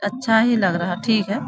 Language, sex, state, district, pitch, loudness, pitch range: Hindi, female, Bihar, Bhagalpur, 210 Hz, -19 LUFS, 195-225 Hz